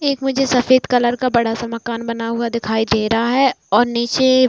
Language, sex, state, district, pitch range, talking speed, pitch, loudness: Hindi, female, Bihar, Saran, 230-255 Hz, 225 wpm, 235 Hz, -17 LUFS